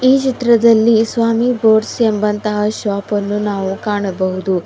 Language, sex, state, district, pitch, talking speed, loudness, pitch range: Kannada, female, Karnataka, Bidar, 215 Hz, 105 wpm, -15 LUFS, 205-230 Hz